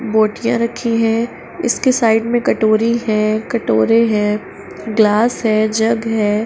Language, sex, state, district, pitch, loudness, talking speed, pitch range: Hindi, female, Uttar Pradesh, Hamirpur, 225 Hz, -15 LUFS, 130 wpm, 215-230 Hz